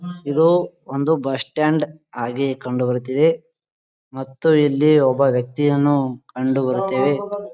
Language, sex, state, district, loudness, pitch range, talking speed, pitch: Kannada, male, Karnataka, Gulbarga, -19 LUFS, 130-155 Hz, 95 wpm, 140 Hz